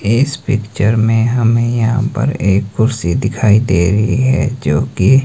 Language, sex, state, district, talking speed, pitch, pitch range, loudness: Hindi, male, Himachal Pradesh, Shimla, 170 wpm, 115 Hz, 105-125 Hz, -14 LUFS